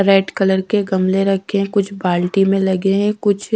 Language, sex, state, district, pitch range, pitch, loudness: Hindi, female, Bihar, Katihar, 190-200 Hz, 195 Hz, -17 LUFS